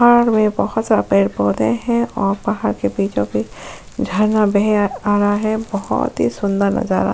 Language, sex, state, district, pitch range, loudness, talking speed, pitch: Hindi, female, Goa, North and South Goa, 195-220 Hz, -17 LUFS, 185 wpm, 205 Hz